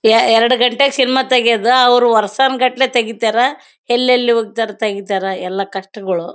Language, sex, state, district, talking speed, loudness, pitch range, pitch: Kannada, female, Karnataka, Bellary, 125 wpm, -14 LUFS, 215-250 Hz, 235 Hz